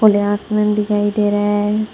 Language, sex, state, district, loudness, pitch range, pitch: Hindi, female, Assam, Hailakandi, -16 LUFS, 205-210 Hz, 210 Hz